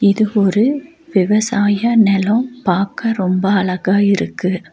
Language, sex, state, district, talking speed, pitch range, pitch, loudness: Tamil, female, Tamil Nadu, Nilgiris, 100 wpm, 195-225 Hz, 205 Hz, -15 LUFS